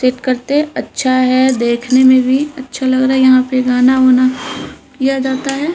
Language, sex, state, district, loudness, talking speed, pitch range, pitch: Hindi, female, Uttarakhand, Tehri Garhwal, -13 LUFS, 175 wpm, 255-265 Hz, 260 Hz